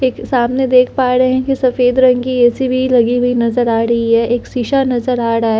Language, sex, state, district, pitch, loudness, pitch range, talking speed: Hindi, female, Delhi, New Delhi, 245 Hz, -13 LUFS, 240-255 Hz, 255 wpm